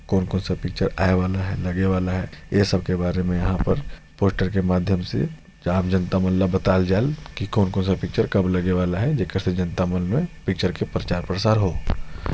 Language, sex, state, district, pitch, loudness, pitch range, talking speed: Chhattisgarhi, male, Chhattisgarh, Sarguja, 95 Hz, -23 LUFS, 90-95 Hz, 215 wpm